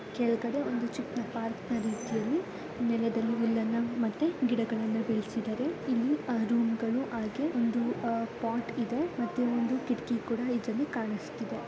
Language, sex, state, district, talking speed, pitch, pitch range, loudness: Kannada, female, Karnataka, Raichur, 125 wpm, 235 Hz, 230-245 Hz, -32 LUFS